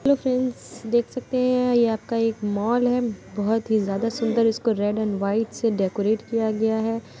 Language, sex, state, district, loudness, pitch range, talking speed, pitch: Hindi, female, Bihar, Muzaffarpur, -23 LUFS, 215-240 Hz, 200 wpm, 225 Hz